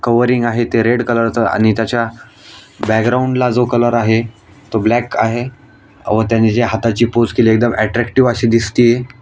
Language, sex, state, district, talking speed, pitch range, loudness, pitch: Marathi, male, Maharashtra, Aurangabad, 175 wpm, 110-120 Hz, -14 LUFS, 115 Hz